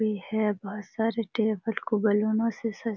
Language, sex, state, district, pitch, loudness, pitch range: Hindi, female, Bihar, Jamui, 220 Hz, -28 LUFS, 210-225 Hz